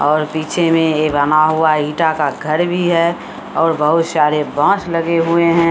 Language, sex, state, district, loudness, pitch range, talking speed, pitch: Maithili, female, Bihar, Samastipur, -15 LUFS, 150-170 Hz, 190 wpm, 160 Hz